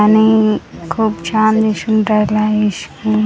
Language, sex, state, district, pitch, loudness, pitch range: Marathi, female, Maharashtra, Gondia, 215 Hz, -14 LUFS, 210-220 Hz